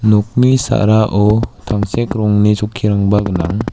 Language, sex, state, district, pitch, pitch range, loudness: Garo, male, Meghalaya, West Garo Hills, 105 Hz, 105-110 Hz, -14 LUFS